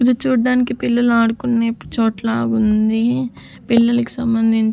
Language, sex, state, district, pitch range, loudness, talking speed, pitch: Telugu, female, Andhra Pradesh, Sri Satya Sai, 225-245 Hz, -17 LUFS, 100 wpm, 235 Hz